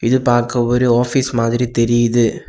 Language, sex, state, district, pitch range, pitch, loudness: Tamil, male, Tamil Nadu, Kanyakumari, 120-125 Hz, 120 Hz, -15 LUFS